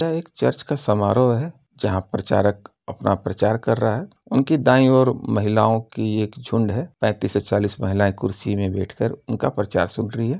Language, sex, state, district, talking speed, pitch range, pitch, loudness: Hindi, male, Uttar Pradesh, Gorakhpur, 190 wpm, 100-130 Hz, 110 Hz, -21 LUFS